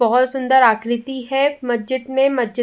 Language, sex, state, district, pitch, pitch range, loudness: Hindi, female, Uttar Pradesh, Jyotiba Phule Nagar, 255 Hz, 240-265 Hz, -18 LUFS